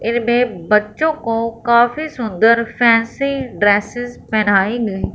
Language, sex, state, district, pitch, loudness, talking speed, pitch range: Hindi, female, Punjab, Fazilka, 230 Hz, -16 LUFS, 105 wpm, 215-245 Hz